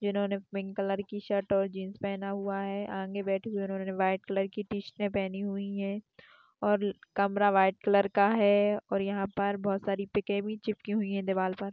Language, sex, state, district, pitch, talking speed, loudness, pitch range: Hindi, female, Maharashtra, Dhule, 200 Hz, 200 wpm, -31 LUFS, 195-205 Hz